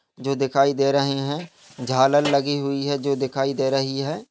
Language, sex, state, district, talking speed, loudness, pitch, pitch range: Hindi, male, Chhattisgarh, Kabirdham, 195 wpm, -22 LUFS, 140 Hz, 135-140 Hz